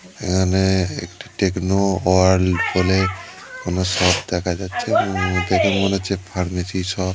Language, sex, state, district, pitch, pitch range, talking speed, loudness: Bengali, male, West Bengal, Kolkata, 95 Hz, 90-95 Hz, 135 wpm, -19 LUFS